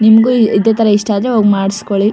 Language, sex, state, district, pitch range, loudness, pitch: Kannada, female, Karnataka, Shimoga, 205-225 Hz, -12 LUFS, 215 Hz